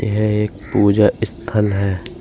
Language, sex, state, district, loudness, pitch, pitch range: Hindi, male, Uttar Pradesh, Shamli, -17 LUFS, 105 Hz, 100-105 Hz